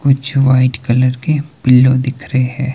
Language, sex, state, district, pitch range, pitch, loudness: Hindi, male, Himachal Pradesh, Shimla, 130-140 Hz, 130 Hz, -13 LUFS